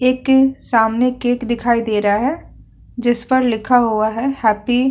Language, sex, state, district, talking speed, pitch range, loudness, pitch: Hindi, female, Uttar Pradesh, Budaun, 170 wpm, 225-260 Hz, -16 LUFS, 245 Hz